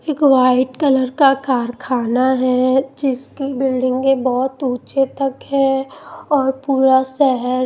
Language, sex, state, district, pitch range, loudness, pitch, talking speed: Hindi, female, Chandigarh, Chandigarh, 255-275 Hz, -17 LUFS, 265 Hz, 115 wpm